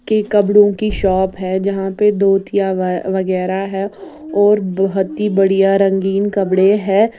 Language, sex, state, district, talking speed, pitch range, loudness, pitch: Hindi, female, Bihar, West Champaran, 150 wpm, 190-205 Hz, -15 LUFS, 195 Hz